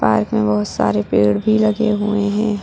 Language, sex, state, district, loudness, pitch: Hindi, female, Bihar, Muzaffarpur, -17 LUFS, 110 Hz